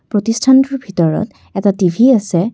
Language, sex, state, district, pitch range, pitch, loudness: Assamese, female, Assam, Kamrup Metropolitan, 190-255 Hz, 210 Hz, -14 LUFS